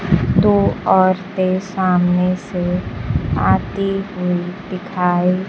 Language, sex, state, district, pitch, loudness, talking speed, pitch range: Hindi, female, Bihar, Kaimur, 185 Hz, -18 LUFS, 75 wpm, 180-190 Hz